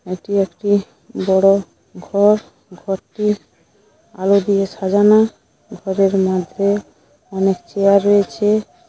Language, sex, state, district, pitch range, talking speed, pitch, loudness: Bengali, female, West Bengal, Paschim Medinipur, 190-205 Hz, 90 wpm, 200 Hz, -17 LUFS